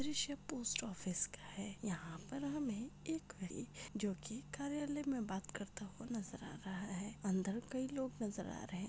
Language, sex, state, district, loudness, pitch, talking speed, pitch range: Hindi, female, Maharashtra, Pune, -44 LUFS, 205 Hz, 180 wpm, 190-260 Hz